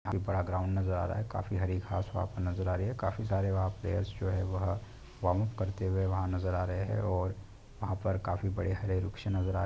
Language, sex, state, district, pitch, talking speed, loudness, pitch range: Hindi, male, Maharashtra, Pune, 95 Hz, 260 wpm, -34 LUFS, 95-100 Hz